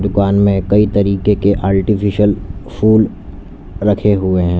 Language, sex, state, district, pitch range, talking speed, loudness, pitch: Hindi, male, Uttar Pradesh, Lalitpur, 95-105 Hz, 130 wpm, -14 LUFS, 100 Hz